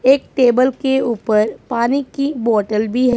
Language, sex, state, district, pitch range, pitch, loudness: Hindi, male, Punjab, Pathankot, 225-265 Hz, 245 Hz, -17 LUFS